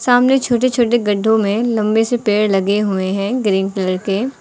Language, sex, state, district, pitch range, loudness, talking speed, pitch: Hindi, female, Uttar Pradesh, Lucknow, 200-240 Hz, -16 LUFS, 190 wpm, 215 Hz